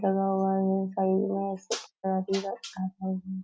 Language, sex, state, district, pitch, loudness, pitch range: Hindi, female, Maharashtra, Nagpur, 190 Hz, -29 LUFS, 190-195 Hz